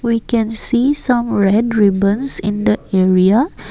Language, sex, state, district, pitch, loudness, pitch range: English, female, Assam, Kamrup Metropolitan, 220 Hz, -14 LUFS, 200-240 Hz